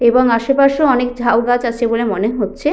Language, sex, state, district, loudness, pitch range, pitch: Bengali, female, West Bengal, Jhargram, -15 LUFS, 230-250 Hz, 240 Hz